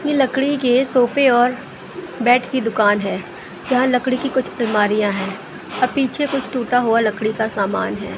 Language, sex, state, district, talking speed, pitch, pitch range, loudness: Hindi, female, Bihar, West Champaran, 175 wpm, 250 Hz, 220-265 Hz, -18 LUFS